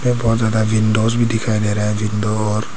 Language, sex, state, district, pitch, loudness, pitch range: Hindi, male, Arunachal Pradesh, Papum Pare, 110 Hz, -17 LUFS, 105-115 Hz